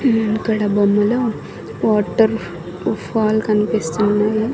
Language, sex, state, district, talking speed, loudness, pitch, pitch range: Telugu, female, Andhra Pradesh, Annamaya, 80 wpm, -18 LUFS, 215 Hz, 205-220 Hz